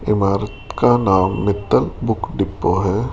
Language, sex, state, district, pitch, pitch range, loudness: Hindi, male, Rajasthan, Jaipur, 100 Hz, 95-105 Hz, -18 LUFS